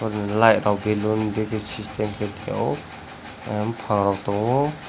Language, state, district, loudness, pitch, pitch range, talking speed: Kokborok, Tripura, West Tripura, -23 LUFS, 105 Hz, 105-110 Hz, 100 wpm